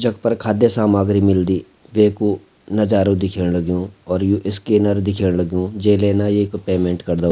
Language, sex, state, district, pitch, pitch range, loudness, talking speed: Garhwali, male, Uttarakhand, Uttarkashi, 100 Hz, 90-105 Hz, -18 LUFS, 145 wpm